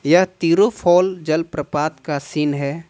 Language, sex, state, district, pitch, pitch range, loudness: Hindi, male, Jharkhand, Ranchi, 160 Hz, 150-175 Hz, -18 LUFS